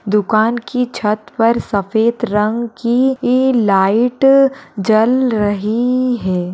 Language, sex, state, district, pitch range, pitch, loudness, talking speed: Hindi, female, Uttar Pradesh, Budaun, 210-250 Hz, 230 Hz, -15 LUFS, 110 wpm